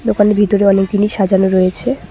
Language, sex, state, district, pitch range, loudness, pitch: Bengali, female, West Bengal, Cooch Behar, 195-210 Hz, -13 LUFS, 205 Hz